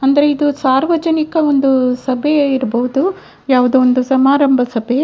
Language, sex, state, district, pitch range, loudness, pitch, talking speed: Kannada, female, Karnataka, Dakshina Kannada, 255-290 Hz, -14 LUFS, 270 Hz, 120 wpm